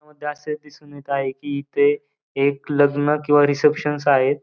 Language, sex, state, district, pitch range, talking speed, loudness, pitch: Marathi, male, Maharashtra, Pune, 140-150 Hz, 150 wpm, -20 LUFS, 145 Hz